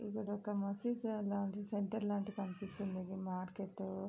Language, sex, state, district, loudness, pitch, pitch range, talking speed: Telugu, female, Andhra Pradesh, Srikakulam, -41 LUFS, 200 Hz, 195-210 Hz, 145 wpm